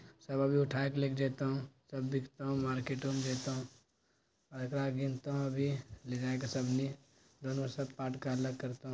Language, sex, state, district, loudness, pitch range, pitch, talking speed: Maithili, male, Bihar, Bhagalpur, -37 LUFS, 130-135 Hz, 135 Hz, 130 wpm